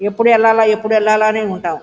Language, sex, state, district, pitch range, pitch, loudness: Telugu, female, Andhra Pradesh, Guntur, 215-225 Hz, 215 Hz, -13 LUFS